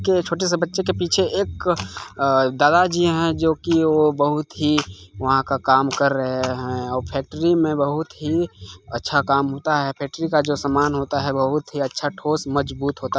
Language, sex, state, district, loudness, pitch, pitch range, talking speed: Hindi, male, Chhattisgarh, Balrampur, -20 LUFS, 145 Hz, 135-160 Hz, 195 wpm